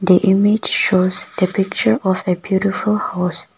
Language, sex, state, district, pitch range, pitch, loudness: English, female, Nagaland, Kohima, 180-200 Hz, 185 Hz, -16 LUFS